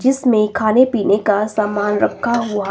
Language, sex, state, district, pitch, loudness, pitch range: Hindi, female, Himachal Pradesh, Shimla, 215 Hz, -16 LUFS, 205-235 Hz